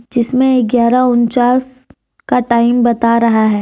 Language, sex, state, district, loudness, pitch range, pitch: Hindi, female, Jharkhand, Deoghar, -12 LUFS, 235-250 Hz, 240 Hz